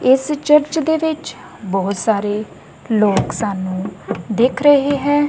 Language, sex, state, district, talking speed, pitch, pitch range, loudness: Punjabi, female, Punjab, Kapurthala, 125 wpm, 225 Hz, 200-290 Hz, -17 LUFS